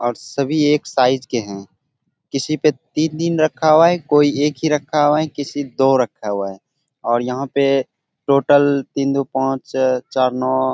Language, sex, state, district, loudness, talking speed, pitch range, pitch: Hindi, male, Bihar, Bhagalpur, -18 LUFS, 190 wpm, 130-150 Hz, 140 Hz